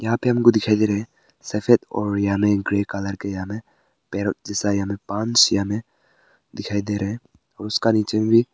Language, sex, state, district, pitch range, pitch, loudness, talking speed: Hindi, male, Arunachal Pradesh, Papum Pare, 100-110 Hz, 105 Hz, -21 LUFS, 195 wpm